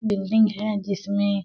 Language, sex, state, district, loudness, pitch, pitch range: Hindi, female, Chhattisgarh, Sarguja, -23 LUFS, 200 Hz, 200-215 Hz